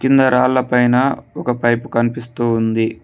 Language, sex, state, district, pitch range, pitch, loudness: Telugu, male, Telangana, Mahabubabad, 115-130 Hz, 120 Hz, -16 LUFS